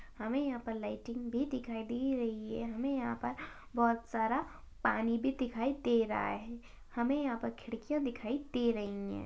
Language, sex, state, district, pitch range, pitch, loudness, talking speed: Hindi, female, Maharashtra, Sindhudurg, 225-260 Hz, 235 Hz, -36 LUFS, 180 wpm